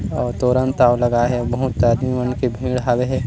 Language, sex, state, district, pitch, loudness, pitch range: Chhattisgarhi, male, Chhattisgarh, Rajnandgaon, 125 Hz, -18 LUFS, 120-130 Hz